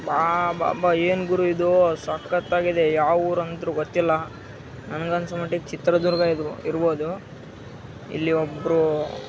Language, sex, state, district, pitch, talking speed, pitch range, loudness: Kannada, male, Karnataka, Raichur, 165 Hz, 115 wpm, 155-175 Hz, -23 LUFS